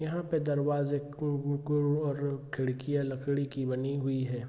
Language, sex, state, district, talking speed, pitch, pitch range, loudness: Hindi, male, Bihar, Araria, 135 wpm, 140 Hz, 135-145 Hz, -32 LUFS